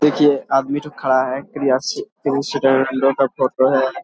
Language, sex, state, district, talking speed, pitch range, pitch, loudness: Hindi, male, Jharkhand, Sahebganj, 120 wpm, 130-140 Hz, 135 Hz, -18 LUFS